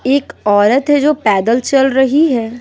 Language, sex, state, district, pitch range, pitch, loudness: Hindi, female, Bihar, Patna, 225-285 Hz, 265 Hz, -12 LUFS